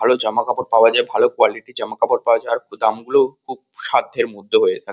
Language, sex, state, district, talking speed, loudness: Bengali, male, West Bengal, Kolkata, 205 wpm, -18 LUFS